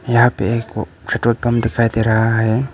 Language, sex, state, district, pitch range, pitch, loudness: Hindi, male, Arunachal Pradesh, Papum Pare, 110-120 Hz, 115 Hz, -17 LUFS